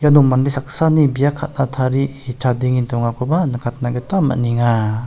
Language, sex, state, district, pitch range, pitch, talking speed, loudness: Garo, male, Meghalaya, South Garo Hills, 120-140 Hz, 130 Hz, 130 wpm, -17 LUFS